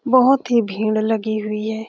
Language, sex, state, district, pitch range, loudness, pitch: Hindi, female, Bihar, Saran, 215-245 Hz, -19 LUFS, 220 Hz